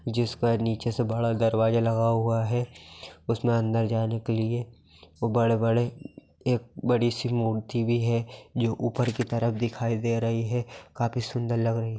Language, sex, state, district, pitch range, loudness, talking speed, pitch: Hindi, male, Bihar, Saran, 115-120 Hz, -27 LUFS, 180 wpm, 115 Hz